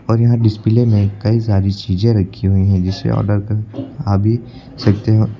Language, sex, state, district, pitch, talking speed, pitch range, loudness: Hindi, male, Uttar Pradesh, Lucknow, 110 Hz, 190 wpm, 100-115 Hz, -16 LUFS